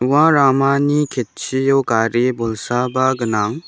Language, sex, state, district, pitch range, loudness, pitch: Garo, male, Meghalaya, West Garo Hills, 120-140 Hz, -17 LUFS, 130 Hz